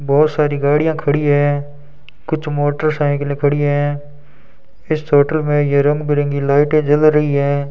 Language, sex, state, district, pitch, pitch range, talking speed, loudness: Hindi, male, Rajasthan, Bikaner, 145 Hz, 145-150 Hz, 150 wpm, -16 LUFS